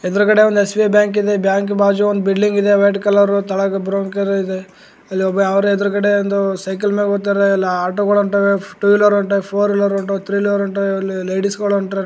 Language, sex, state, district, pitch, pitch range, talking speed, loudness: Kannada, male, Karnataka, Gulbarga, 200 Hz, 195-205 Hz, 195 wpm, -16 LUFS